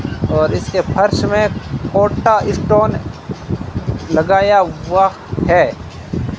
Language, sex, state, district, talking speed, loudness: Hindi, male, Rajasthan, Bikaner, 85 wpm, -15 LUFS